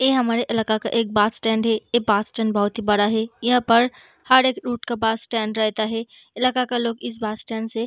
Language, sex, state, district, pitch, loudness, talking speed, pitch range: Hindi, female, Bihar, Gaya, 225 Hz, -21 LUFS, 250 wpm, 220-240 Hz